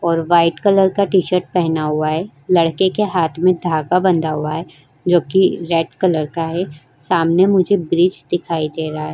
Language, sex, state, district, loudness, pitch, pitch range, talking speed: Hindi, female, Uttar Pradesh, Jyotiba Phule Nagar, -17 LUFS, 170 Hz, 155-185 Hz, 190 wpm